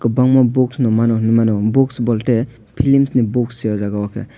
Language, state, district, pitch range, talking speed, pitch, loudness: Kokborok, Tripura, West Tripura, 110-130 Hz, 220 wpm, 115 Hz, -16 LUFS